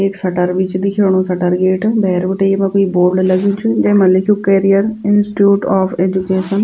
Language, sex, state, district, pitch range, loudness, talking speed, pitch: Garhwali, female, Uttarakhand, Tehri Garhwal, 185-200 Hz, -13 LUFS, 180 wpm, 195 Hz